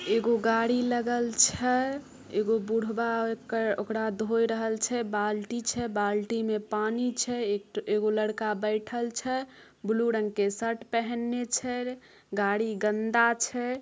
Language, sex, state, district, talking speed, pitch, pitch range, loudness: Maithili, female, Bihar, Samastipur, 125 wpm, 225 Hz, 215-240 Hz, -28 LUFS